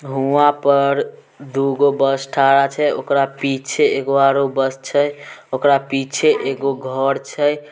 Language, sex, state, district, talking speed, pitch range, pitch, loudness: Maithili, male, Bihar, Samastipur, 140 wpm, 135-145 Hz, 140 Hz, -17 LUFS